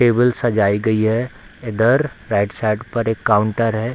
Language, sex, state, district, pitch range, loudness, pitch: Hindi, male, Bihar, Darbhanga, 105-120 Hz, -18 LUFS, 110 Hz